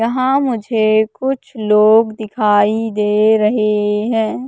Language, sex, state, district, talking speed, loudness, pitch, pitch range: Hindi, female, Madhya Pradesh, Katni, 105 wpm, -15 LUFS, 220 Hz, 210-230 Hz